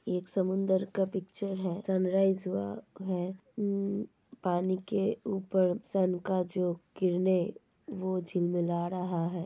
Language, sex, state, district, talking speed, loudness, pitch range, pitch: Hindi, female, Uttar Pradesh, Ghazipur, 125 wpm, -32 LUFS, 180-195 Hz, 185 Hz